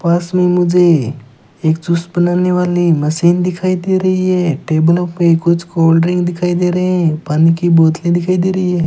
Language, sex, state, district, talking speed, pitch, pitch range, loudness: Hindi, male, Rajasthan, Bikaner, 190 wpm, 175 Hz, 165-180 Hz, -13 LUFS